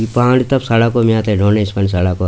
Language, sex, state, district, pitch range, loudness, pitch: Garhwali, male, Uttarakhand, Tehri Garhwal, 100-120 Hz, -14 LUFS, 110 Hz